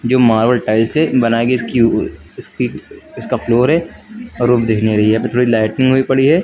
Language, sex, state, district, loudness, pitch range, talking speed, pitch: Hindi, male, Uttar Pradesh, Lucknow, -14 LUFS, 110-130 Hz, 185 wpm, 120 Hz